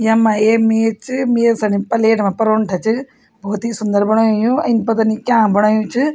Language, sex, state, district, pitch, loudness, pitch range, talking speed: Garhwali, female, Uttarakhand, Tehri Garhwal, 225 Hz, -15 LUFS, 215-230 Hz, 205 wpm